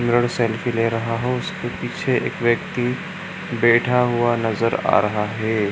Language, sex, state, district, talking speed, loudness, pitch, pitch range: Hindi, male, Bihar, Jamui, 145 wpm, -21 LUFS, 120 Hz, 115-120 Hz